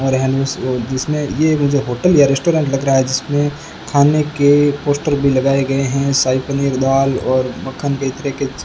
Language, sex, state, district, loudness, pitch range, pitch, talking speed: Hindi, male, Rajasthan, Bikaner, -16 LUFS, 135-145 Hz, 140 Hz, 180 wpm